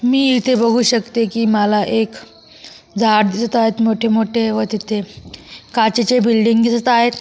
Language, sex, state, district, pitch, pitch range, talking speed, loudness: Marathi, female, Maharashtra, Solapur, 230 Hz, 220-235 Hz, 150 wpm, -15 LUFS